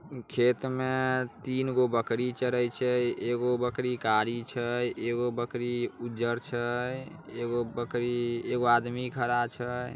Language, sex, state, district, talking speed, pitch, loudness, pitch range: Magahi, male, Bihar, Samastipur, 120 wpm, 120 Hz, -30 LUFS, 120-125 Hz